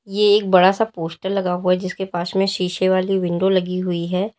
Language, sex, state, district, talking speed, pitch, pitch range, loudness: Hindi, female, Uttar Pradesh, Lalitpur, 230 wpm, 185 Hz, 180-195 Hz, -19 LUFS